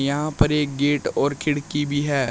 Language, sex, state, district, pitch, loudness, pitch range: Hindi, male, Uttar Pradesh, Shamli, 145 Hz, -22 LUFS, 140-150 Hz